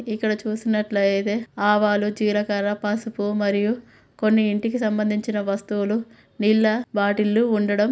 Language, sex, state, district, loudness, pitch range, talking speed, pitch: Telugu, female, Telangana, Karimnagar, -22 LUFS, 205-220 Hz, 105 wpm, 210 Hz